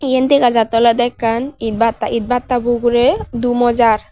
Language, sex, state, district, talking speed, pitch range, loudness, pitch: Chakma, female, Tripura, Unakoti, 160 wpm, 230-245 Hz, -15 LUFS, 240 Hz